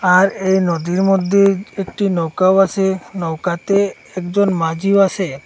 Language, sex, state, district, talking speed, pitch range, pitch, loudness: Bengali, male, Assam, Hailakandi, 120 wpm, 175-195 Hz, 190 Hz, -16 LUFS